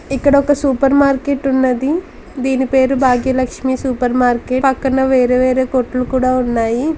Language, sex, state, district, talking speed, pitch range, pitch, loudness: Telugu, female, Andhra Pradesh, Srikakulam, 145 wpm, 255-270 Hz, 260 Hz, -15 LUFS